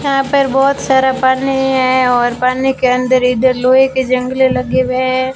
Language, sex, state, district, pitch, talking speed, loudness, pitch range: Hindi, female, Rajasthan, Bikaner, 260 Hz, 190 wpm, -13 LUFS, 255-265 Hz